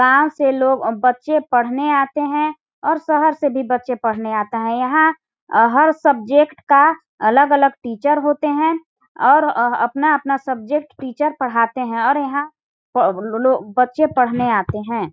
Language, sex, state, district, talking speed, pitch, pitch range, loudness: Hindi, female, Chhattisgarh, Balrampur, 150 wpm, 275 Hz, 245-300 Hz, -17 LUFS